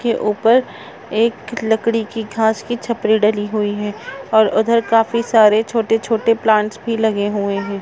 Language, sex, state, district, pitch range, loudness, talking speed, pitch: Hindi, female, Chhattisgarh, Raigarh, 210-230 Hz, -17 LUFS, 170 wpm, 220 Hz